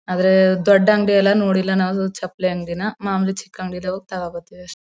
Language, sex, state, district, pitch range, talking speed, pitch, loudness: Kannada, female, Karnataka, Mysore, 185-195 Hz, 185 wpm, 190 Hz, -18 LUFS